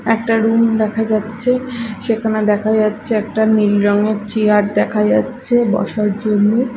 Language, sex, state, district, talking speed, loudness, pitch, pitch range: Bengali, female, Odisha, Malkangiri, 135 wpm, -16 LUFS, 220 Hz, 210-225 Hz